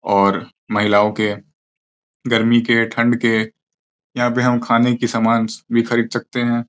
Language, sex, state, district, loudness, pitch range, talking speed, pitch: Hindi, male, Uttar Pradesh, Gorakhpur, -17 LUFS, 110-120 Hz, 150 wpm, 115 Hz